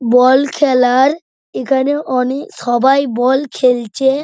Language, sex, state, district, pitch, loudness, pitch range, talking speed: Bengali, male, West Bengal, Dakshin Dinajpur, 265 Hz, -14 LUFS, 250-275 Hz, 100 wpm